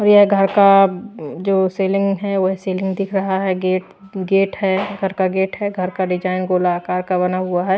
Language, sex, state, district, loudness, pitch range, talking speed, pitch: Hindi, female, Chhattisgarh, Raipur, -17 LUFS, 185-195 Hz, 210 wpm, 190 Hz